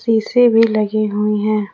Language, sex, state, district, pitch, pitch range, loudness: Hindi, female, Jharkhand, Ranchi, 215 Hz, 210-225 Hz, -15 LUFS